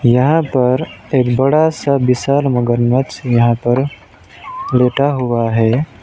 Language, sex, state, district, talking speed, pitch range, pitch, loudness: Hindi, male, West Bengal, Alipurduar, 120 wpm, 120-135 Hz, 125 Hz, -14 LUFS